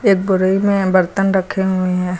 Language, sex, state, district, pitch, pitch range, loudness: Hindi, female, Uttar Pradesh, Lucknow, 190 Hz, 185-195 Hz, -16 LUFS